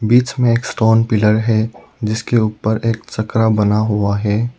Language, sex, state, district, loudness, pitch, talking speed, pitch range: Hindi, male, Arunachal Pradesh, Lower Dibang Valley, -16 LUFS, 110 Hz, 170 wpm, 110-115 Hz